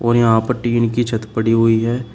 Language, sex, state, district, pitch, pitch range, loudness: Hindi, male, Uttar Pradesh, Shamli, 115 Hz, 115-120 Hz, -16 LUFS